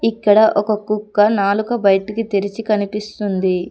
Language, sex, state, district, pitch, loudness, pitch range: Telugu, female, Telangana, Komaram Bheem, 210 Hz, -17 LUFS, 200-215 Hz